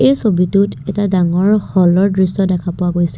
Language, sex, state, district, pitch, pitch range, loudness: Assamese, female, Assam, Kamrup Metropolitan, 190 Hz, 180-200 Hz, -14 LUFS